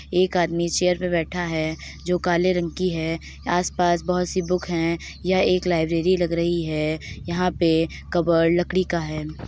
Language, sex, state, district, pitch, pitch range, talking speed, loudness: Hindi, female, Uttar Pradesh, Deoria, 175 Hz, 165-180 Hz, 185 wpm, -23 LUFS